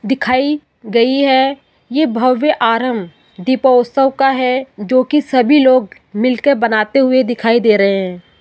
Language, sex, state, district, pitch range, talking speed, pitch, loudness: Hindi, female, Rajasthan, Jaipur, 230-270 Hz, 135 wpm, 255 Hz, -13 LUFS